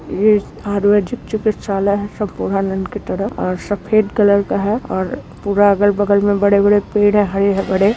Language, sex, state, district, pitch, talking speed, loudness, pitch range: Awadhi, female, Uttar Pradesh, Varanasi, 205 Hz, 165 wpm, -16 LUFS, 195-210 Hz